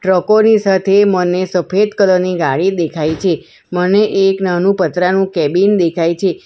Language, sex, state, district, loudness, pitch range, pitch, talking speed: Gujarati, female, Gujarat, Valsad, -13 LUFS, 180-195 Hz, 185 Hz, 160 wpm